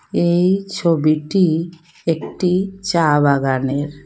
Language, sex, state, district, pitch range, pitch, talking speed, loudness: Bengali, female, Assam, Hailakandi, 150-180 Hz, 165 Hz, 75 wpm, -18 LUFS